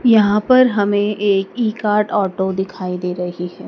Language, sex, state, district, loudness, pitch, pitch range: Hindi, female, Madhya Pradesh, Dhar, -17 LUFS, 205 Hz, 190-215 Hz